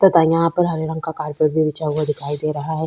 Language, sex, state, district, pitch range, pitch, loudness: Hindi, female, Bihar, Vaishali, 150-165 Hz, 160 Hz, -19 LUFS